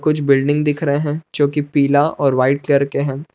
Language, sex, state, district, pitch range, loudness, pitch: Hindi, male, Jharkhand, Palamu, 140-150 Hz, -17 LUFS, 145 Hz